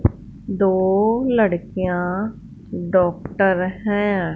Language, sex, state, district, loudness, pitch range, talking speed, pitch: Hindi, female, Punjab, Fazilka, -20 LUFS, 180-205 Hz, 55 wpm, 190 Hz